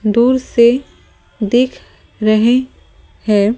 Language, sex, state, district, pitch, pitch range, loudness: Hindi, female, Delhi, New Delhi, 235 Hz, 215-250 Hz, -14 LUFS